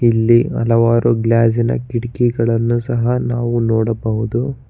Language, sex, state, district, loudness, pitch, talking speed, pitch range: Kannada, male, Karnataka, Bangalore, -16 LUFS, 120 Hz, 90 wpm, 115-120 Hz